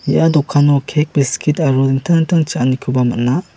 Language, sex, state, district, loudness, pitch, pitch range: Garo, male, Meghalaya, West Garo Hills, -15 LUFS, 145 Hz, 135-160 Hz